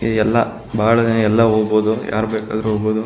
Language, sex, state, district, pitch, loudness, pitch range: Kannada, male, Karnataka, Shimoga, 110 Hz, -17 LUFS, 110-115 Hz